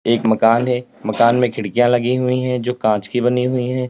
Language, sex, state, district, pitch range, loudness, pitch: Hindi, male, Uttar Pradesh, Lalitpur, 115-125 Hz, -17 LUFS, 120 Hz